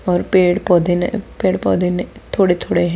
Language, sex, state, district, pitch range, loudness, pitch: Hindi, female, Bihar, Bhagalpur, 175-185 Hz, -17 LUFS, 180 Hz